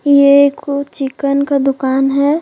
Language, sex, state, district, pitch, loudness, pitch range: Hindi, female, Jharkhand, Deoghar, 280 Hz, -13 LUFS, 275-285 Hz